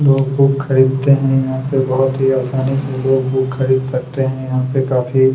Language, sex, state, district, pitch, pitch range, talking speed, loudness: Hindi, male, Chhattisgarh, Kabirdham, 130 Hz, 130-135 Hz, 200 wpm, -16 LUFS